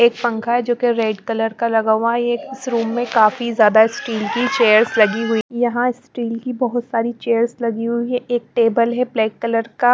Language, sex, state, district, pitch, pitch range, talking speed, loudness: Hindi, female, Punjab, Pathankot, 235 Hz, 225-240 Hz, 225 wpm, -18 LUFS